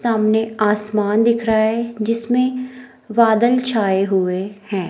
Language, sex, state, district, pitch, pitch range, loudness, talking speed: Hindi, female, Himachal Pradesh, Shimla, 220 Hz, 210-235 Hz, -18 LUFS, 120 wpm